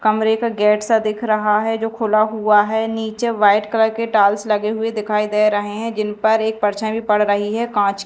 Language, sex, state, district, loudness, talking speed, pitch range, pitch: Hindi, female, Madhya Pradesh, Dhar, -17 LUFS, 215 wpm, 210-220 Hz, 215 Hz